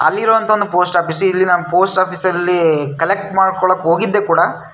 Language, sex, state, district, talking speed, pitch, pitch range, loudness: Kannada, male, Karnataka, Shimoga, 175 wpm, 185 Hz, 175-195 Hz, -14 LUFS